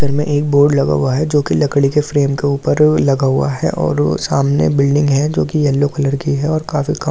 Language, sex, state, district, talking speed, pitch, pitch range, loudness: Hindi, male, Delhi, New Delhi, 305 wpm, 145 Hz, 135-150 Hz, -15 LUFS